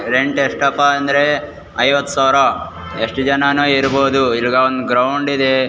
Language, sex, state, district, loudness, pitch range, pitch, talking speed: Kannada, male, Karnataka, Raichur, -15 LUFS, 130-140 Hz, 135 Hz, 125 wpm